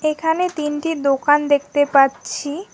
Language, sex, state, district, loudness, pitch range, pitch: Bengali, female, West Bengal, Alipurduar, -18 LUFS, 285-315 Hz, 295 Hz